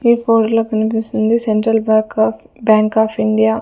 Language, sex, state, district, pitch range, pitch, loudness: Telugu, female, Andhra Pradesh, Sri Satya Sai, 215-225 Hz, 220 Hz, -15 LUFS